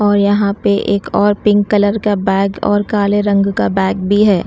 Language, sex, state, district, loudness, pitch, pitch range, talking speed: Hindi, female, Chhattisgarh, Raipur, -14 LUFS, 205 Hz, 200-205 Hz, 215 wpm